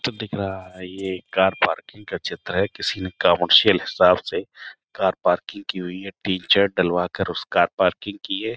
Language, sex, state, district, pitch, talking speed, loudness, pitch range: Hindi, male, Uttar Pradesh, Budaun, 95 Hz, 190 wpm, -21 LUFS, 90-100 Hz